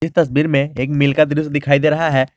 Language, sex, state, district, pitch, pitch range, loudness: Hindi, male, Jharkhand, Garhwa, 145 Hz, 140-155 Hz, -16 LUFS